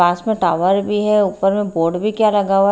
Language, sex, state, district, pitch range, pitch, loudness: Hindi, female, Haryana, Rohtak, 180-210 Hz, 200 Hz, -16 LUFS